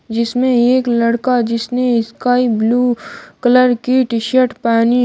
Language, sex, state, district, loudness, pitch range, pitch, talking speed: Hindi, male, Uttar Pradesh, Shamli, -15 LUFS, 235-255 Hz, 245 Hz, 130 wpm